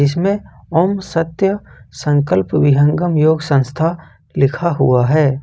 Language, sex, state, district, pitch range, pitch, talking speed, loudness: Hindi, male, Jharkhand, Ranchi, 135-170 Hz, 155 Hz, 110 wpm, -15 LUFS